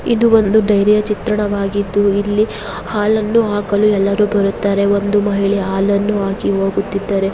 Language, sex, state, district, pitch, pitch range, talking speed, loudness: Kannada, female, Karnataka, Bellary, 205 Hz, 200-210 Hz, 105 wpm, -15 LUFS